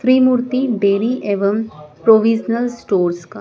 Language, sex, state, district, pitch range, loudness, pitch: Hindi, female, Madhya Pradesh, Dhar, 200-245 Hz, -16 LUFS, 220 Hz